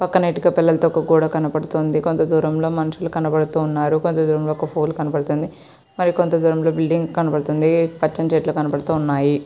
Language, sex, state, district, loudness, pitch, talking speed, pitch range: Telugu, female, Andhra Pradesh, Srikakulam, -19 LUFS, 160 Hz, 135 wpm, 155-165 Hz